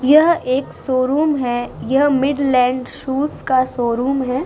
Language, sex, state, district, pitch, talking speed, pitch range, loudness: Hindi, female, Uttar Pradesh, Muzaffarnagar, 265 Hz, 135 wpm, 255-280 Hz, -17 LUFS